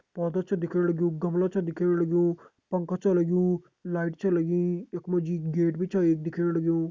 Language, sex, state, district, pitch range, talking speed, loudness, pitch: Hindi, male, Uttarakhand, Uttarkashi, 170-180 Hz, 200 wpm, -27 LUFS, 175 Hz